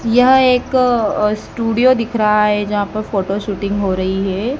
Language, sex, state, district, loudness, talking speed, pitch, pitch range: Hindi, female, Madhya Pradesh, Dhar, -15 LUFS, 170 wpm, 215 Hz, 205-245 Hz